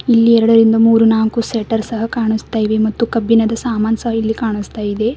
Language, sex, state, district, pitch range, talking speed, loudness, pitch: Kannada, female, Karnataka, Bidar, 220-230 Hz, 175 wpm, -14 LUFS, 225 Hz